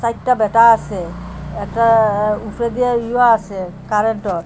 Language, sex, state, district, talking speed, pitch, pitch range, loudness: Bengali, female, Assam, Hailakandi, 135 wpm, 215 Hz, 190-230 Hz, -15 LUFS